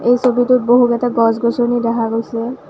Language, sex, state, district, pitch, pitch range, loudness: Assamese, female, Assam, Kamrup Metropolitan, 240 Hz, 230-245 Hz, -15 LUFS